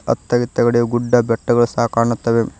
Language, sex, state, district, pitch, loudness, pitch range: Kannada, male, Karnataka, Koppal, 120 Hz, -17 LUFS, 115-120 Hz